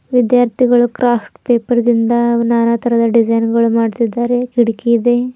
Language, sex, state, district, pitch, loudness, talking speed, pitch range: Kannada, female, Karnataka, Bidar, 235 Hz, -14 LUFS, 125 wpm, 230-245 Hz